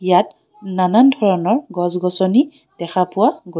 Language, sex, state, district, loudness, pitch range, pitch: Assamese, female, Assam, Kamrup Metropolitan, -17 LUFS, 180-235 Hz, 190 Hz